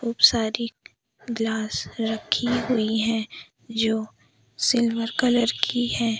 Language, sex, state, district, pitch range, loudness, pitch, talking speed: Hindi, female, Madhya Pradesh, Umaria, 220-235 Hz, -23 LUFS, 225 Hz, 105 wpm